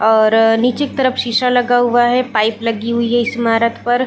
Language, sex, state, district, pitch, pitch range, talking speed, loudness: Hindi, female, Chhattisgarh, Bilaspur, 240 Hz, 225-245 Hz, 220 wpm, -14 LUFS